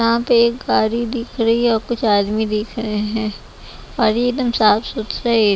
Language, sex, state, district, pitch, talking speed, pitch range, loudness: Hindi, female, Bihar, West Champaran, 225 Hz, 175 wpm, 215-235 Hz, -18 LUFS